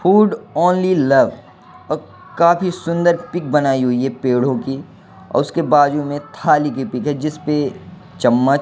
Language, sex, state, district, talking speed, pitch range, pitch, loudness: Hindi, male, Madhya Pradesh, Katni, 140 wpm, 135-175 Hz, 150 Hz, -17 LUFS